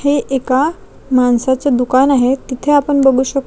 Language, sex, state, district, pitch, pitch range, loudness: Marathi, female, Maharashtra, Chandrapur, 270 Hz, 255-280 Hz, -14 LUFS